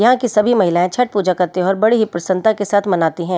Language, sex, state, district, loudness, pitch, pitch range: Hindi, female, Delhi, New Delhi, -16 LUFS, 200 Hz, 180-220 Hz